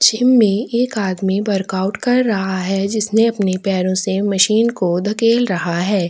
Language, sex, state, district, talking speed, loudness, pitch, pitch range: Hindi, female, Chhattisgarh, Kabirdham, 165 wpm, -16 LUFS, 200 Hz, 190-225 Hz